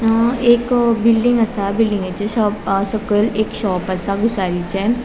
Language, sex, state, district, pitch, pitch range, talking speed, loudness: Konkani, female, Goa, North and South Goa, 215 Hz, 200-230 Hz, 120 wpm, -17 LUFS